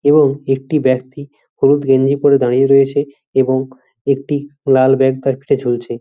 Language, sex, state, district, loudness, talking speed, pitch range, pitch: Bengali, male, West Bengal, Jhargram, -15 LUFS, 150 wpm, 130-140 Hz, 135 Hz